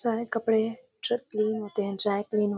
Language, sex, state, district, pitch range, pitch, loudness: Hindi, female, Bihar, Bhagalpur, 210-230 Hz, 220 Hz, -28 LUFS